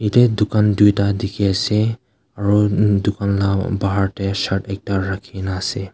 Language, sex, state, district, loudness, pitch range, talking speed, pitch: Nagamese, male, Nagaland, Kohima, -18 LUFS, 95-105 Hz, 150 wpm, 100 Hz